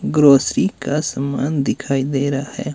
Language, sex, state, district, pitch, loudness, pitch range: Hindi, male, Himachal Pradesh, Shimla, 140 Hz, -18 LUFS, 135-150 Hz